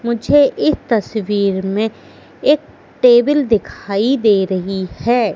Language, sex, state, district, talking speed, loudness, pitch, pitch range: Hindi, female, Madhya Pradesh, Katni, 110 wpm, -15 LUFS, 220 Hz, 200-250 Hz